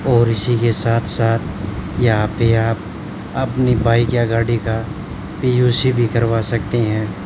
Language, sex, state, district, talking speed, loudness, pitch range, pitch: Hindi, male, Haryana, Rohtak, 150 wpm, -17 LUFS, 110-120 Hz, 115 Hz